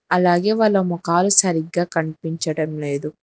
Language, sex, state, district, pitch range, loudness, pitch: Telugu, female, Telangana, Hyderabad, 155-180 Hz, -19 LUFS, 170 Hz